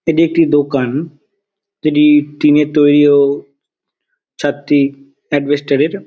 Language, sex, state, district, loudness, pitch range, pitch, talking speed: Bengali, male, West Bengal, Dakshin Dinajpur, -13 LUFS, 145-165 Hz, 145 Hz, 110 wpm